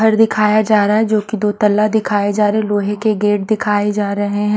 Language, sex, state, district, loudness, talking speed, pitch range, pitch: Hindi, female, Haryana, Charkhi Dadri, -15 LUFS, 250 wpm, 205-215 Hz, 210 Hz